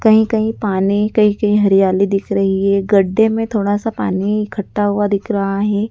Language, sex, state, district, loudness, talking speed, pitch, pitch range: Hindi, female, Madhya Pradesh, Dhar, -15 LUFS, 195 wpm, 205 Hz, 195-215 Hz